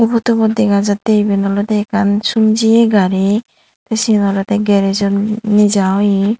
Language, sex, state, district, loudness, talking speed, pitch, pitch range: Chakma, female, Tripura, Unakoti, -13 LUFS, 160 wpm, 210 Hz, 200-220 Hz